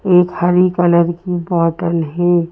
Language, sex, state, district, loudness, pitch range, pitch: Hindi, female, Madhya Pradesh, Bhopal, -15 LUFS, 170-180 Hz, 175 Hz